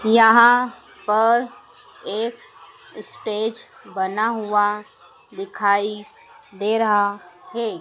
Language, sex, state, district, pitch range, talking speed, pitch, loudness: Hindi, female, Madhya Pradesh, Dhar, 205-235 Hz, 75 wpm, 220 Hz, -19 LUFS